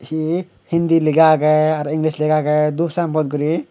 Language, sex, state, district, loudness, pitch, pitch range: Chakma, male, Tripura, Unakoti, -17 LUFS, 155 Hz, 150-165 Hz